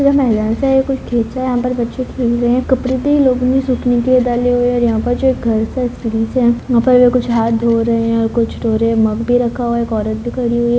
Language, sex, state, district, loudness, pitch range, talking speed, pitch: Hindi, female, Bihar, Purnia, -15 LUFS, 230-255 Hz, 305 wpm, 245 Hz